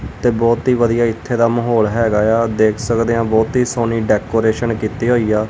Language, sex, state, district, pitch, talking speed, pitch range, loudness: Punjabi, male, Punjab, Kapurthala, 115 Hz, 205 wpm, 110-120 Hz, -16 LUFS